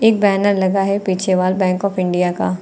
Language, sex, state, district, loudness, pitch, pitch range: Hindi, female, Uttar Pradesh, Lucknow, -17 LUFS, 190 Hz, 185-200 Hz